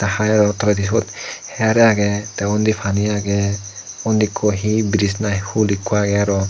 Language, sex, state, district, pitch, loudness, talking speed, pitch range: Chakma, male, Tripura, Dhalai, 105 Hz, -18 LUFS, 175 wpm, 100-110 Hz